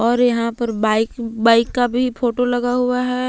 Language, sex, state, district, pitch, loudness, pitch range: Hindi, female, Jharkhand, Palamu, 240 Hz, -18 LUFS, 230-250 Hz